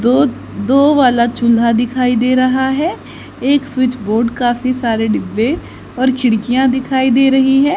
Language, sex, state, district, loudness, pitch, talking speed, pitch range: Hindi, female, Haryana, Charkhi Dadri, -14 LUFS, 255 Hz, 155 wpm, 235-265 Hz